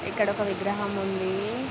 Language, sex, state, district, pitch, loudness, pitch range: Telugu, female, Andhra Pradesh, Krishna, 200 Hz, -28 LUFS, 195-210 Hz